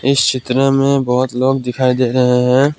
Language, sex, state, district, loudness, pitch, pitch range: Hindi, male, Assam, Kamrup Metropolitan, -14 LUFS, 130 Hz, 125-135 Hz